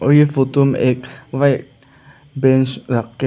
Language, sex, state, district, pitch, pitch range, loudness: Hindi, male, Arunachal Pradesh, Lower Dibang Valley, 135 Hz, 130-140 Hz, -16 LUFS